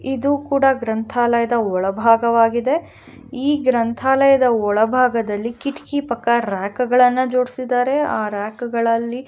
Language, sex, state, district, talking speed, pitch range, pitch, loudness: Kannada, female, Karnataka, Raichur, 105 wpm, 230-265 Hz, 240 Hz, -18 LUFS